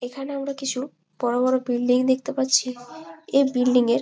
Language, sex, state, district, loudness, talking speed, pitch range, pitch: Bengali, female, West Bengal, Malda, -23 LUFS, 165 wpm, 245-270 Hz, 255 Hz